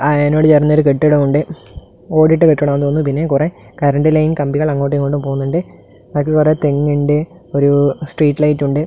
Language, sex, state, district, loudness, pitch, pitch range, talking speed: Malayalam, male, Kerala, Kasaragod, -14 LUFS, 150 Hz, 140-155 Hz, 155 wpm